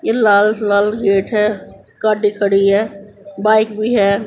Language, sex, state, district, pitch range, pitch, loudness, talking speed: Hindi, female, Haryana, Jhajjar, 200-215 Hz, 210 Hz, -15 LUFS, 155 wpm